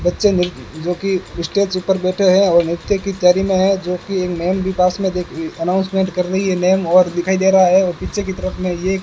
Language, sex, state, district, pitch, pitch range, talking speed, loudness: Hindi, male, Rajasthan, Bikaner, 185 Hz, 180-190 Hz, 245 wpm, -17 LUFS